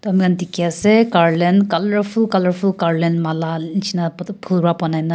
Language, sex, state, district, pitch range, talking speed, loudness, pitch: Nagamese, female, Nagaland, Kohima, 165-195 Hz, 165 wpm, -17 LUFS, 180 Hz